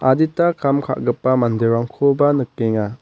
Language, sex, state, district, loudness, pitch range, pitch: Garo, male, Meghalaya, West Garo Hills, -18 LUFS, 115-145 Hz, 130 Hz